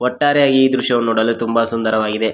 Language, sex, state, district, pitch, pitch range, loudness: Kannada, male, Karnataka, Koppal, 115 Hz, 110-130 Hz, -15 LUFS